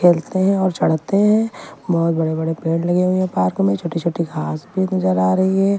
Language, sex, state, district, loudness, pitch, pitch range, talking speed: Hindi, female, Delhi, New Delhi, -18 LUFS, 170 Hz, 160-190 Hz, 205 wpm